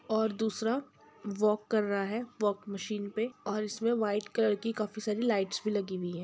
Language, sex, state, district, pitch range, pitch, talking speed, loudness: Hindi, male, Bihar, Sitamarhi, 205-225 Hz, 215 Hz, 200 wpm, -32 LUFS